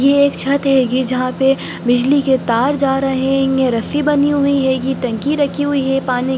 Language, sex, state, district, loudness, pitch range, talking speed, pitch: Hindi, female, Bihar, Sitamarhi, -15 LUFS, 255-280 Hz, 215 wpm, 270 Hz